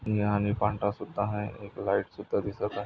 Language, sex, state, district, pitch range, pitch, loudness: Marathi, male, Maharashtra, Nagpur, 100-105 Hz, 105 Hz, -30 LUFS